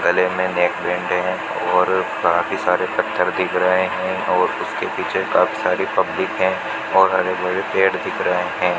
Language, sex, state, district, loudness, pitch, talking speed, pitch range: Hindi, male, Rajasthan, Bikaner, -19 LUFS, 90 Hz, 170 wpm, 90-95 Hz